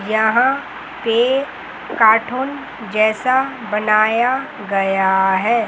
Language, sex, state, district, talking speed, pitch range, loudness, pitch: Hindi, female, Chandigarh, Chandigarh, 75 wpm, 215-255 Hz, -17 LUFS, 220 Hz